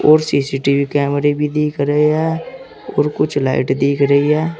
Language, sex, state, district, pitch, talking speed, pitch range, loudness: Hindi, male, Uttar Pradesh, Saharanpur, 145 Hz, 170 wpm, 140-155 Hz, -16 LUFS